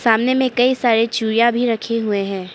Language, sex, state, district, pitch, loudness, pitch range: Hindi, male, Arunachal Pradesh, Papum Pare, 230 Hz, -17 LUFS, 220-245 Hz